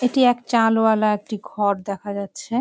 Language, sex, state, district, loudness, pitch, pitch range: Bengali, female, West Bengal, Jalpaiguri, -20 LUFS, 220 Hz, 205-240 Hz